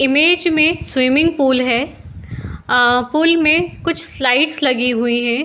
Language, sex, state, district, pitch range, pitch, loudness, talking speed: Hindi, female, Bihar, Saharsa, 250-320 Hz, 275 Hz, -15 LUFS, 155 wpm